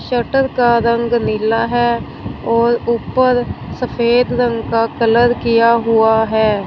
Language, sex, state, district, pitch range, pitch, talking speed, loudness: Hindi, female, Punjab, Fazilka, 230-240 Hz, 235 Hz, 125 wpm, -15 LUFS